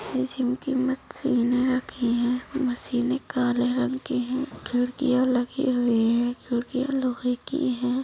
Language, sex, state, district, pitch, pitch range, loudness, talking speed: Hindi, female, Uttar Pradesh, Budaun, 250 Hz, 245-260 Hz, -25 LUFS, 140 wpm